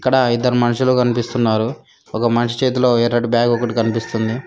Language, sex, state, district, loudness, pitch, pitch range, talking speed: Telugu, female, Telangana, Mahabubabad, -17 LUFS, 120 Hz, 115-125 Hz, 145 wpm